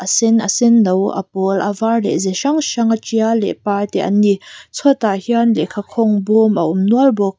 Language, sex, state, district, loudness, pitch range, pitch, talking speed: Mizo, female, Mizoram, Aizawl, -15 LUFS, 195-230 Hz, 210 Hz, 210 wpm